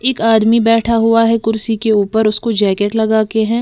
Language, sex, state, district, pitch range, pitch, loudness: Hindi, female, Uttar Pradesh, Lalitpur, 220-230 Hz, 225 Hz, -13 LUFS